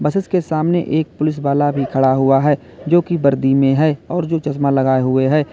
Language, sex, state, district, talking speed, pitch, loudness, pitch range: Hindi, male, Uttar Pradesh, Lalitpur, 215 wpm, 145 Hz, -16 LUFS, 135-160 Hz